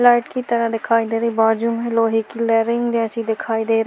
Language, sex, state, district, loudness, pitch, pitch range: Hindi, female, Chhattisgarh, Korba, -19 LUFS, 230 Hz, 225-235 Hz